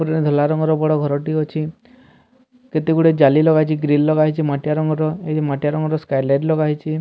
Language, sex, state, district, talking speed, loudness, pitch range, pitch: Odia, male, Odisha, Sambalpur, 215 wpm, -18 LUFS, 150-160 Hz, 155 Hz